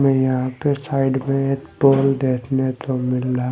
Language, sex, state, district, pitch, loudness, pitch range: Hindi, male, Delhi, New Delhi, 135 Hz, -20 LUFS, 130-135 Hz